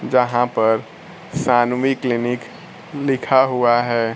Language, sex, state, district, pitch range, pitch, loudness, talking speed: Hindi, male, Bihar, Kaimur, 120-130 Hz, 125 Hz, -18 LUFS, 100 wpm